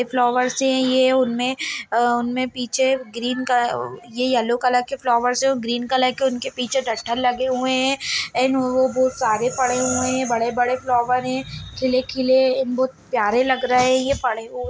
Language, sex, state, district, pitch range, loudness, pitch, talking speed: Hindi, female, Bihar, Lakhisarai, 245-260 Hz, -20 LUFS, 255 Hz, 190 wpm